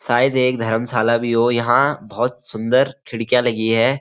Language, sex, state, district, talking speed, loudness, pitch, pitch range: Hindi, male, Uttarakhand, Uttarkashi, 165 wpm, -18 LUFS, 120 Hz, 115-125 Hz